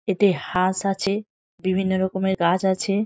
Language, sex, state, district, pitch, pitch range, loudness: Bengali, female, West Bengal, Jhargram, 190 Hz, 185-195 Hz, -22 LUFS